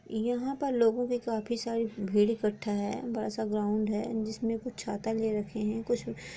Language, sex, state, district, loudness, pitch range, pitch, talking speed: Hindi, female, Chhattisgarh, Korba, -31 LUFS, 210-235 Hz, 225 Hz, 190 wpm